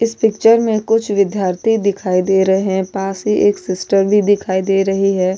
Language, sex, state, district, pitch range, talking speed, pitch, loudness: Hindi, female, Goa, North and South Goa, 190-210 Hz, 200 wpm, 195 Hz, -15 LUFS